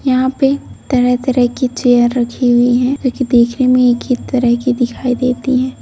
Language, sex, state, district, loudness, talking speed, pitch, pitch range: Hindi, female, Bihar, Begusarai, -14 LUFS, 175 wpm, 250 Hz, 245-260 Hz